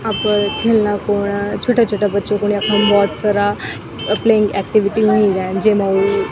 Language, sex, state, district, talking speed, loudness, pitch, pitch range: Garhwali, female, Uttarakhand, Tehri Garhwal, 150 wpm, -16 LUFS, 205 Hz, 200-215 Hz